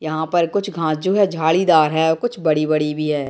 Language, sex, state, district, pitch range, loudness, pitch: Hindi, female, Bihar, Gopalganj, 155-180 Hz, -18 LUFS, 160 Hz